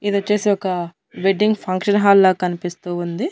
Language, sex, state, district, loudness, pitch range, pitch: Telugu, female, Andhra Pradesh, Annamaya, -18 LUFS, 180-205 Hz, 190 Hz